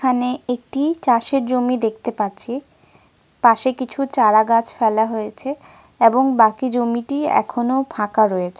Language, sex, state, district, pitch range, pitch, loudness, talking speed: Bengali, female, Jharkhand, Sahebganj, 220-260 Hz, 245 Hz, -19 LUFS, 75 wpm